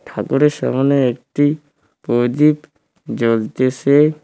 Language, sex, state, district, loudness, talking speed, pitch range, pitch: Bengali, male, West Bengal, Cooch Behar, -16 LUFS, 70 wpm, 120-150 Hz, 140 Hz